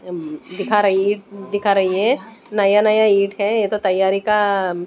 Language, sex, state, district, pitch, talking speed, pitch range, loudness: Hindi, female, Odisha, Nuapada, 200 Hz, 185 wpm, 190-210 Hz, -17 LUFS